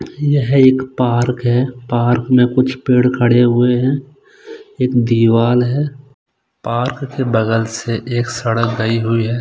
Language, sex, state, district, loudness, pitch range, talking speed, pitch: Hindi, male, Odisha, Khordha, -15 LUFS, 120-130 Hz, 145 wpm, 125 Hz